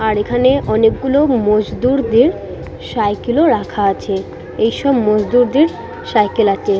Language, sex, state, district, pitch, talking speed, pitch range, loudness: Bengali, female, West Bengal, Purulia, 225 Hz, 105 wpm, 210-260 Hz, -15 LUFS